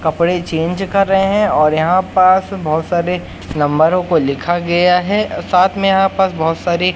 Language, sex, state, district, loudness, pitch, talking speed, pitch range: Hindi, male, Madhya Pradesh, Katni, -14 LUFS, 180 Hz, 180 wpm, 165-190 Hz